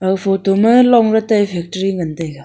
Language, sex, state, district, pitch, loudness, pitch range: Wancho, female, Arunachal Pradesh, Longding, 195 Hz, -14 LUFS, 175-220 Hz